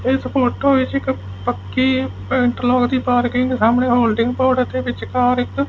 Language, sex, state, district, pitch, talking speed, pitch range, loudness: Punjabi, male, Punjab, Fazilka, 250 Hz, 170 wpm, 235-260 Hz, -18 LUFS